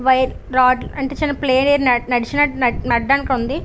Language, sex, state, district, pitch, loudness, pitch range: Telugu, female, Andhra Pradesh, Visakhapatnam, 260 Hz, -17 LUFS, 250-280 Hz